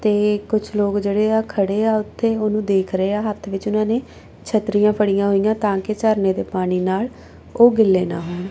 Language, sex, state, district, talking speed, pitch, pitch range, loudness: Punjabi, female, Punjab, Kapurthala, 205 wpm, 210 Hz, 195-215 Hz, -19 LUFS